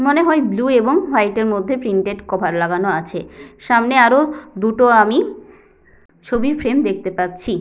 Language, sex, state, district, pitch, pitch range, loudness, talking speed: Bengali, female, West Bengal, Jhargram, 235 Hz, 195-285 Hz, -16 LUFS, 150 wpm